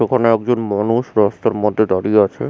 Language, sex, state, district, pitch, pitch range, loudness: Bengali, male, West Bengal, Jhargram, 110 Hz, 105-115 Hz, -16 LUFS